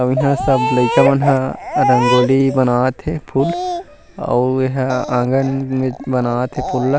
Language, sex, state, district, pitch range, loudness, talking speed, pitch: Chhattisgarhi, male, Chhattisgarh, Rajnandgaon, 125-135 Hz, -16 LUFS, 145 wpm, 130 Hz